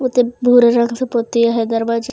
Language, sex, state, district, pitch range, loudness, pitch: Chhattisgarhi, female, Chhattisgarh, Raigarh, 230-245 Hz, -15 LUFS, 235 Hz